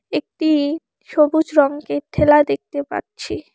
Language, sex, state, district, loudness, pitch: Bengali, female, West Bengal, Alipurduar, -18 LUFS, 290 Hz